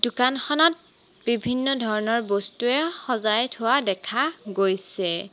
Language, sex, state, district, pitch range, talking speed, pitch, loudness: Assamese, female, Assam, Sonitpur, 200-265 Hz, 90 wpm, 235 Hz, -22 LUFS